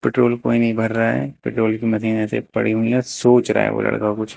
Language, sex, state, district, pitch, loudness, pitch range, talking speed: Hindi, male, Uttar Pradesh, Lucknow, 115 Hz, -19 LUFS, 110-120 Hz, 260 wpm